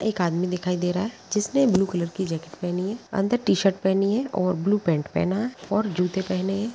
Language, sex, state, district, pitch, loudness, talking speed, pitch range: Hindi, female, Bihar, Gaya, 190 Hz, -24 LUFS, 230 wpm, 180-210 Hz